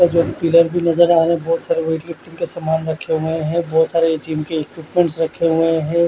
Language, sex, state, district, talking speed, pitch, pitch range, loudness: Hindi, male, Odisha, Khordha, 235 wpm, 165 Hz, 160-170 Hz, -18 LUFS